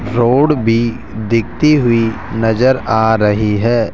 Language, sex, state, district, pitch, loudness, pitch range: Hindi, male, Rajasthan, Jaipur, 115 Hz, -13 LUFS, 110-120 Hz